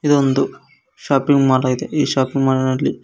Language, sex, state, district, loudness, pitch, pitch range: Kannada, male, Karnataka, Koppal, -17 LUFS, 135 Hz, 130-140 Hz